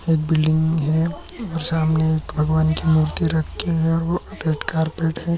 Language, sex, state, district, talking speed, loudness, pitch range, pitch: Marathi, male, Maharashtra, Chandrapur, 165 wpm, -20 LUFS, 155-165 Hz, 160 Hz